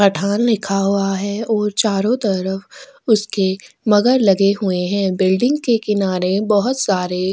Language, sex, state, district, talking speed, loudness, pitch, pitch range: Hindi, female, Chhattisgarh, Kabirdham, 145 wpm, -17 LUFS, 200 Hz, 195-220 Hz